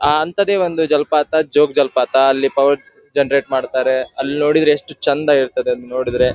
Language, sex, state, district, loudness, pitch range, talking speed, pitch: Kannada, male, Karnataka, Dharwad, -16 LUFS, 135-155 Hz, 160 wpm, 145 Hz